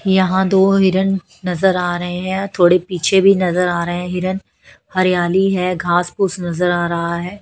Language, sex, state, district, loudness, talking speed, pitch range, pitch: Hindi, female, Haryana, Charkhi Dadri, -16 LUFS, 185 wpm, 175-190 Hz, 180 Hz